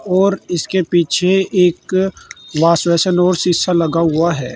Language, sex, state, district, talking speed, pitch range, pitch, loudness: Hindi, male, Uttar Pradesh, Saharanpur, 145 wpm, 170-185 Hz, 175 Hz, -15 LUFS